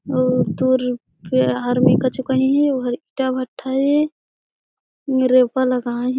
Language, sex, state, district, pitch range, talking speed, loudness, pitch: Chhattisgarhi, female, Chhattisgarh, Jashpur, 250-265 Hz, 125 wpm, -19 LUFS, 255 Hz